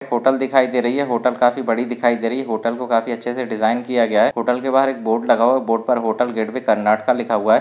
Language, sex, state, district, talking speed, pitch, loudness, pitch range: Hindi, male, Maharashtra, Solapur, 290 wpm, 120 Hz, -18 LUFS, 115-125 Hz